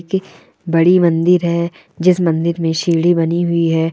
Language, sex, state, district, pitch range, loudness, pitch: Hindi, female, Rajasthan, Churu, 165-175 Hz, -15 LUFS, 170 Hz